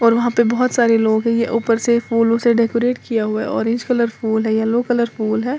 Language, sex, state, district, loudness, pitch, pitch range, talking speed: Hindi, female, Uttar Pradesh, Lalitpur, -17 LUFS, 230 Hz, 225-235 Hz, 260 wpm